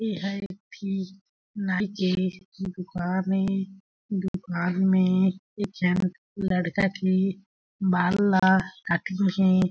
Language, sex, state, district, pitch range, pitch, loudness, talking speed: Chhattisgarhi, female, Chhattisgarh, Jashpur, 185-195 Hz, 190 Hz, -26 LUFS, 100 wpm